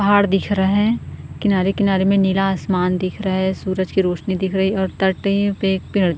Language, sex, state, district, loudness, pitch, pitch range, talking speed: Hindi, female, Chhattisgarh, Korba, -19 LUFS, 190 Hz, 190-200 Hz, 205 wpm